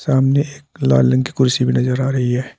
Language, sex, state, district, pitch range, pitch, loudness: Hindi, male, Uttar Pradesh, Saharanpur, 125-135 Hz, 130 Hz, -16 LUFS